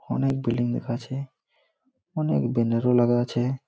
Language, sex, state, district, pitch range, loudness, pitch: Bengali, male, West Bengal, Malda, 120-140 Hz, -25 LUFS, 125 Hz